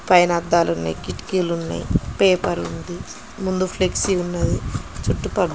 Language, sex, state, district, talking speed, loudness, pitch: Telugu, female, Telangana, Nalgonda, 110 wpm, -21 LUFS, 175 Hz